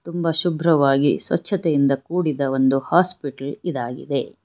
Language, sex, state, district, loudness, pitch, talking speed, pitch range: Kannada, female, Karnataka, Bangalore, -20 LUFS, 155 Hz, 95 wpm, 140-170 Hz